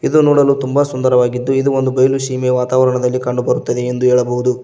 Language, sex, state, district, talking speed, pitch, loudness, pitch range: Kannada, male, Karnataka, Koppal, 170 wpm, 130 Hz, -14 LUFS, 125-135 Hz